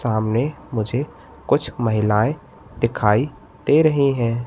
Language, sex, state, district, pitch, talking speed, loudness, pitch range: Hindi, male, Madhya Pradesh, Katni, 125 Hz, 105 wpm, -20 LUFS, 110-145 Hz